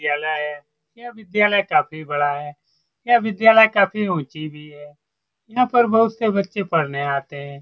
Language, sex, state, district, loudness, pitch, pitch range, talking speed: Hindi, male, Bihar, Saran, -19 LUFS, 165 Hz, 145-220 Hz, 165 wpm